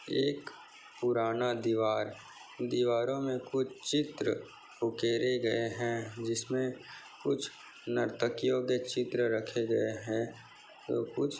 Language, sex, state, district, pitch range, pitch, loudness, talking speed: Hindi, male, Maharashtra, Chandrapur, 115-125 Hz, 120 Hz, -33 LUFS, 105 wpm